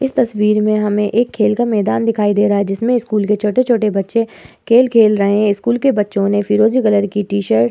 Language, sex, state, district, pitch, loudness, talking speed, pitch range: Hindi, female, Uttar Pradesh, Muzaffarnagar, 210 Hz, -15 LUFS, 240 wpm, 205-230 Hz